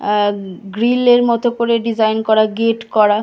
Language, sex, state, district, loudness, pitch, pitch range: Bengali, female, West Bengal, Kolkata, -15 LUFS, 220 Hz, 210-235 Hz